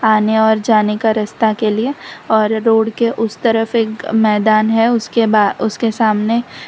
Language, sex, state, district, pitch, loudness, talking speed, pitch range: Hindi, female, Gujarat, Valsad, 220 Hz, -14 LUFS, 180 wpm, 215-230 Hz